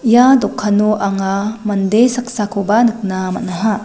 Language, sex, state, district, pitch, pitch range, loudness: Garo, female, Meghalaya, West Garo Hills, 210 Hz, 200-230 Hz, -15 LUFS